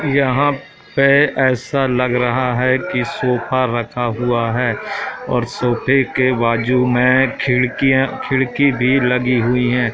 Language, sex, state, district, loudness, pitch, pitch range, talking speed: Hindi, male, Madhya Pradesh, Katni, -16 LUFS, 125 Hz, 125-135 Hz, 135 wpm